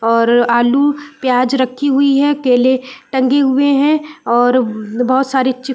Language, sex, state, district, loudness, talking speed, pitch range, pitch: Hindi, female, Uttarakhand, Uttarkashi, -14 LUFS, 155 wpm, 250-280 Hz, 260 Hz